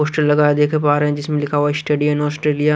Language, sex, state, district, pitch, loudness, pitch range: Hindi, male, Punjab, Kapurthala, 150 Hz, -17 LUFS, 145-150 Hz